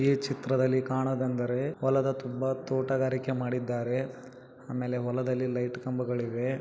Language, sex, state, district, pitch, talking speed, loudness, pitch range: Kannada, male, Karnataka, Raichur, 130 Hz, 110 wpm, -30 LUFS, 125-130 Hz